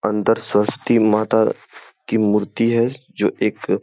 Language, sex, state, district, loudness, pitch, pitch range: Hindi, male, Uttar Pradesh, Gorakhpur, -19 LUFS, 110 Hz, 105-115 Hz